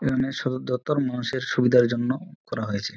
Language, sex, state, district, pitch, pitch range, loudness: Bengali, male, West Bengal, Dakshin Dinajpur, 125 Hz, 120-130 Hz, -25 LUFS